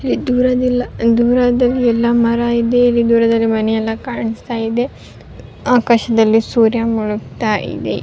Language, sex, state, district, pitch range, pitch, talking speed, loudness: Kannada, female, Karnataka, Raichur, 225-245 Hz, 235 Hz, 95 wpm, -15 LUFS